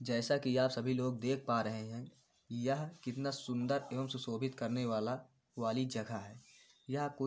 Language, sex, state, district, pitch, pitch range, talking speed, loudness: Hindi, male, Uttar Pradesh, Varanasi, 125 Hz, 115-135 Hz, 175 wpm, -38 LUFS